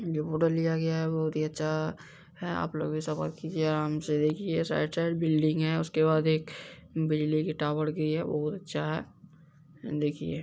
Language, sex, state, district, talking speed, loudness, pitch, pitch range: Hindi, male, Bihar, Madhepura, 195 wpm, -30 LUFS, 155 Hz, 155-160 Hz